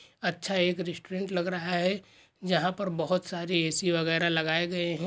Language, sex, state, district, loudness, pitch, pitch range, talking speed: Hindi, male, Rajasthan, Churu, -29 LUFS, 175 Hz, 170-185 Hz, 175 wpm